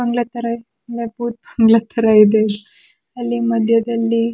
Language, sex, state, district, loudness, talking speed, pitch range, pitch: Kannada, female, Karnataka, Shimoga, -17 LUFS, 140 wpm, 225-235 Hz, 230 Hz